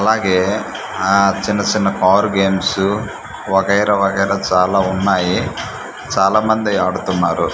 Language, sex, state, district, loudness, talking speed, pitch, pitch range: Telugu, male, Andhra Pradesh, Manyam, -16 LUFS, 95 wpm, 95 Hz, 95-100 Hz